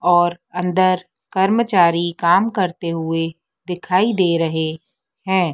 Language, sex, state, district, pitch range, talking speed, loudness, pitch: Hindi, female, Madhya Pradesh, Dhar, 170-190 Hz, 110 wpm, -18 LUFS, 180 Hz